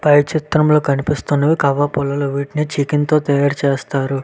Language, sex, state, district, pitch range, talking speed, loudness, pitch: Telugu, male, Andhra Pradesh, Visakhapatnam, 140-150 Hz, 155 wpm, -16 LUFS, 145 Hz